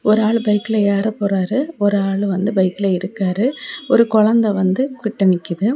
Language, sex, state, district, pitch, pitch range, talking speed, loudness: Tamil, female, Tamil Nadu, Kanyakumari, 205 Hz, 195-225 Hz, 155 wpm, -17 LUFS